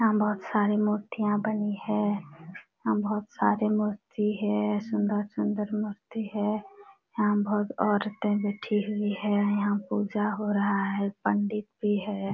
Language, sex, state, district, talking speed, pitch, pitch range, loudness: Hindi, female, Jharkhand, Sahebganj, 140 wpm, 210 Hz, 205-210 Hz, -28 LUFS